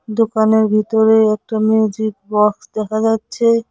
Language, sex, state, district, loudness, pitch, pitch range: Bengali, female, West Bengal, Cooch Behar, -15 LUFS, 220 Hz, 215-220 Hz